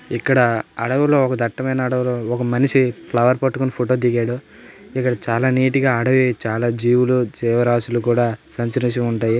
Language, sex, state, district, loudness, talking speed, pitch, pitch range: Telugu, male, Telangana, Nalgonda, -18 LUFS, 140 wpm, 120 Hz, 120-130 Hz